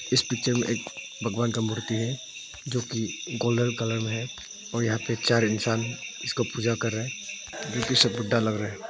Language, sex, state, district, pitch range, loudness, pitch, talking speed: Hindi, male, Arunachal Pradesh, Papum Pare, 115-120 Hz, -27 LUFS, 115 Hz, 210 wpm